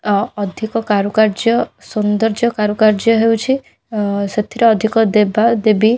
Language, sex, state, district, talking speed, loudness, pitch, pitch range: Odia, female, Odisha, Khordha, 120 wpm, -15 LUFS, 220 Hz, 210-225 Hz